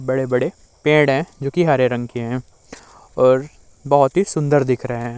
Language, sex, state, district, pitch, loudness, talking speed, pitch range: Hindi, male, Uttar Pradesh, Muzaffarnagar, 130 Hz, -18 LUFS, 175 wpm, 125-145 Hz